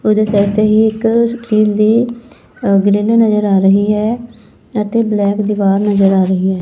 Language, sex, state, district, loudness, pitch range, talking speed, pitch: Punjabi, female, Punjab, Fazilka, -13 LUFS, 200-225 Hz, 180 wpm, 210 Hz